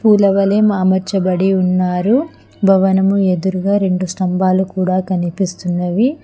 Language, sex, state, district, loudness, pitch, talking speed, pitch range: Telugu, female, Telangana, Hyderabad, -15 LUFS, 190 Hz, 95 wpm, 185-195 Hz